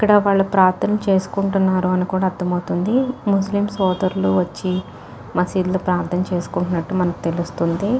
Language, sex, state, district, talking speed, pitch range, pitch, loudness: Telugu, female, Telangana, Nalgonda, 110 wpm, 180-195 Hz, 185 Hz, -19 LUFS